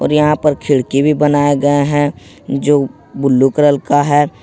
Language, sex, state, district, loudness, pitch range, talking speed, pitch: Hindi, male, Jharkhand, Ranchi, -13 LUFS, 140-145 Hz, 175 wpm, 145 Hz